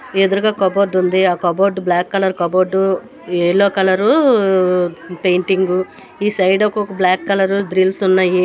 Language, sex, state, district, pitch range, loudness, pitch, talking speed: Telugu, female, Andhra Pradesh, Srikakulam, 180-195 Hz, -15 LUFS, 190 Hz, 130 wpm